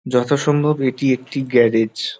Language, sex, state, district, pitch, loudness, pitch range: Bengali, male, West Bengal, North 24 Parganas, 130 Hz, -18 LUFS, 120-145 Hz